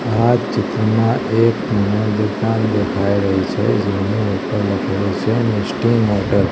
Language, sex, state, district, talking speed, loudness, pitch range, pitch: Gujarati, male, Gujarat, Gandhinagar, 100 wpm, -17 LUFS, 100-115 Hz, 105 Hz